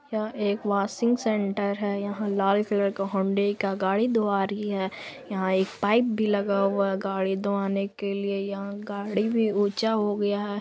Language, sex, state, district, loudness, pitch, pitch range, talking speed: Hindi, female, Bihar, Purnia, -26 LUFS, 200 Hz, 195-210 Hz, 185 wpm